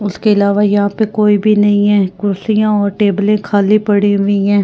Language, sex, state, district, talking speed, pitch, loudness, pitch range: Hindi, female, Delhi, New Delhi, 195 wpm, 205 Hz, -12 LUFS, 200-210 Hz